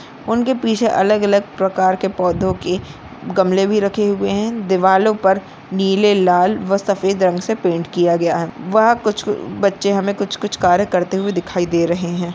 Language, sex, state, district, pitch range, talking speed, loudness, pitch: Hindi, female, Bihar, Bhagalpur, 180-205 Hz, 175 wpm, -17 LUFS, 195 Hz